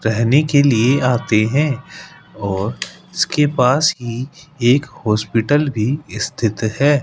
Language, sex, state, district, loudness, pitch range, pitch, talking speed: Hindi, male, Rajasthan, Jaipur, -17 LUFS, 115-145 Hz, 125 Hz, 120 wpm